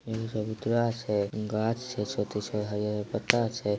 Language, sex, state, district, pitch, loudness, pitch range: Maithili, male, Bihar, Samastipur, 110 Hz, -30 LUFS, 105-115 Hz